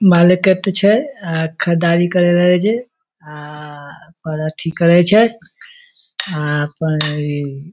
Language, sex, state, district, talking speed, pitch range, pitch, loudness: Maithili, male, Bihar, Samastipur, 125 wpm, 155-195 Hz, 170 Hz, -15 LUFS